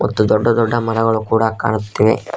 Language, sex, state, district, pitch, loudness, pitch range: Kannada, male, Karnataka, Koppal, 110 Hz, -16 LUFS, 110-115 Hz